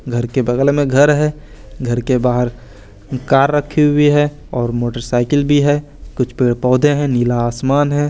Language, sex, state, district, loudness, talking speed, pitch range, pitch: Hindi, male, Chandigarh, Chandigarh, -15 LUFS, 180 wpm, 120-145 Hz, 130 Hz